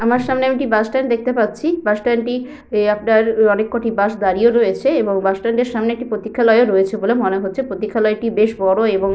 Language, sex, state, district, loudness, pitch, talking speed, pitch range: Bengali, female, West Bengal, Jhargram, -17 LUFS, 225 Hz, 210 wpm, 210-240 Hz